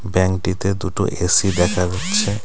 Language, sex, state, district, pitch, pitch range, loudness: Bengali, male, West Bengal, Cooch Behar, 95 Hz, 90-100 Hz, -19 LUFS